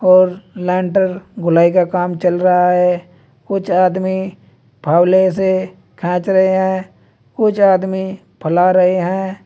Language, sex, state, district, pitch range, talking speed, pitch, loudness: Hindi, male, Uttar Pradesh, Saharanpur, 180-190 Hz, 125 wpm, 185 Hz, -15 LUFS